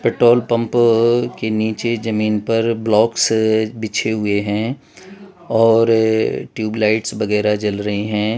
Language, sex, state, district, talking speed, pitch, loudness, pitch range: Hindi, male, Gujarat, Valsad, 115 wpm, 110 Hz, -17 LUFS, 110-115 Hz